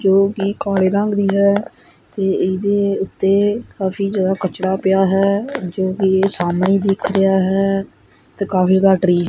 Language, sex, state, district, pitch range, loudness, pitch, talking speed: Punjabi, male, Punjab, Kapurthala, 190-200 Hz, -17 LUFS, 195 Hz, 160 wpm